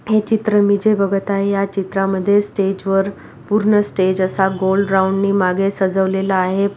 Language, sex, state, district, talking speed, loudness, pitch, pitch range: Marathi, female, Maharashtra, Pune, 150 wpm, -17 LUFS, 195 Hz, 190-200 Hz